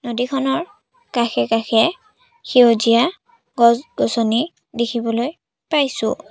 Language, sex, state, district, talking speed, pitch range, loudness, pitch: Assamese, female, Assam, Sonitpur, 55 wpm, 235-340 Hz, -18 LUFS, 250 Hz